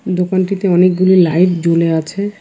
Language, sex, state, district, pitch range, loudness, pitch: Bengali, female, West Bengal, Alipurduar, 170-190 Hz, -13 LUFS, 180 Hz